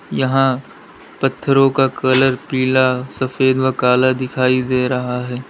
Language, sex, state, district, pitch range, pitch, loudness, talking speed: Hindi, male, Uttar Pradesh, Lalitpur, 125-130 Hz, 130 Hz, -16 LUFS, 130 wpm